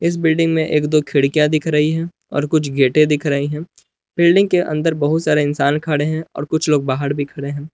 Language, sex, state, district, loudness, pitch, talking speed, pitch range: Hindi, male, Jharkhand, Palamu, -17 LUFS, 150 Hz, 235 wpm, 145-160 Hz